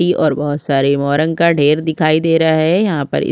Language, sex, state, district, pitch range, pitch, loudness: Hindi, female, Chhattisgarh, Sukma, 145-165 Hz, 155 Hz, -14 LUFS